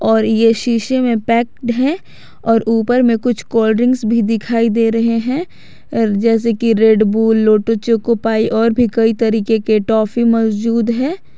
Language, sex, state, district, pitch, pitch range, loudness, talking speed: Hindi, female, Jharkhand, Garhwa, 230 Hz, 225-235 Hz, -14 LUFS, 170 wpm